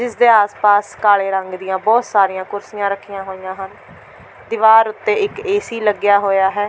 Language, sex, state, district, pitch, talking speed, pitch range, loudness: Punjabi, female, Delhi, New Delhi, 205 Hz, 170 wpm, 195-225 Hz, -16 LUFS